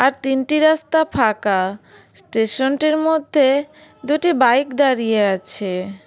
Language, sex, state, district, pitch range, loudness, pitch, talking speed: Bengali, female, West Bengal, Cooch Behar, 210-305 Hz, -18 LUFS, 265 Hz, 100 wpm